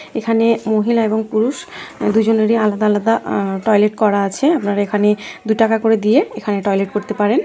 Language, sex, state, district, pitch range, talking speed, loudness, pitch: Bengali, female, West Bengal, North 24 Parganas, 210-225 Hz, 170 wpm, -16 LUFS, 215 Hz